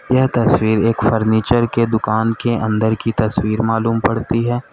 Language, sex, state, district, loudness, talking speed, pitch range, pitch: Hindi, male, Uttar Pradesh, Lalitpur, -16 LUFS, 165 wpm, 110-120 Hz, 115 Hz